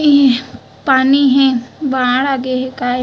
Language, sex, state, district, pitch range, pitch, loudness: Chhattisgarhi, female, Chhattisgarh, Raigarh, 255-275 Hz, 265 Hz, -14 LUFS